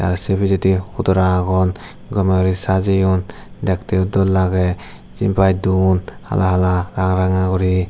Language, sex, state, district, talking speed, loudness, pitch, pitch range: Chakma, male, Tripura, Dhalai, 145 wpm, -17 LUFS, 95 Hz, 90-95 Hz